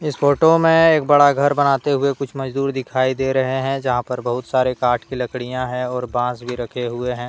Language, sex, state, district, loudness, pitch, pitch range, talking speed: Hindi, male, Jharkhand, Deoghar, -18 LUFS, 130 Hz, 125-140 Hz, 230 wpm